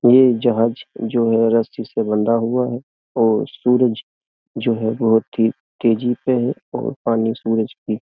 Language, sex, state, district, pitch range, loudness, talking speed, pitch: Hindi, male, Uttar Pradesh, Jyotiba Phule Nagar, 115-120 Hz, -19 LUFS, 170 wpm, 115 Hz